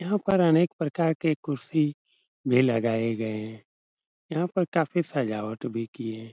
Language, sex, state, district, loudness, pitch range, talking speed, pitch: Hindi, male, Uttar Pradesh, Etah, -27 LUFS, 115-170 Hz, 160 wpm, 150 Hz